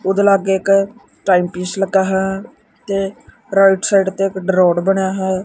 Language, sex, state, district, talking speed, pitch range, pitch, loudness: Punjabi, male, Punjab, Kapurthala, 155 wpm, 190-195 Hz, 195 Hz, -16 LUFS